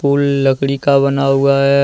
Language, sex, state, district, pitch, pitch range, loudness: Hindi, male, Jharkhand, Deoghar, 140 Hz, 135-140 Hz, -14 LUFS